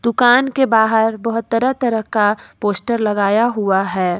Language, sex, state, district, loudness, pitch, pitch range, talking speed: Hindi, female, Jharkhand, Ranchi, -16 LUFS, 225 Hz, 205-235 Hz, 155 wpm